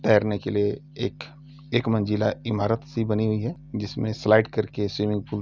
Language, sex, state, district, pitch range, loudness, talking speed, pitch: Hindi, male, Uttar Pradesh, Jalaun, 105-120 Hz, -25 LUFS, 175 wpm, 110 Hz